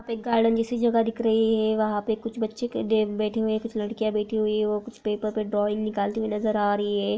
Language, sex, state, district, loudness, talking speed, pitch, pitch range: Hindi, female, Uttar Pradesh, Jyotiba Phule Nagar, -25 LUFS, 290 wpm, 215 Hz, 210-225 Hz